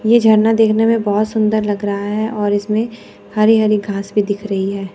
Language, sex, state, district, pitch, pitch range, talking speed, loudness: Hindi, female, Chandigarh, Chandigarh, 215 Hz, 205-220 Hz, 220 wpm, -16 LUFS